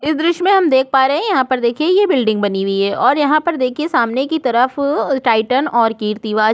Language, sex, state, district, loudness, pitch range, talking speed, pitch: Hindi, female, Chhattisgarh, Korba, -15 LUFS, 225-305 Hz, 255 wpm, 265 Hz